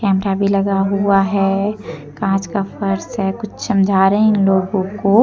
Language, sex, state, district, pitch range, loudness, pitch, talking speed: Hindi, female, Jharkhand, Deoghar, 195-200 Hz, -16 LUFS, 195 Hz, 185 wpm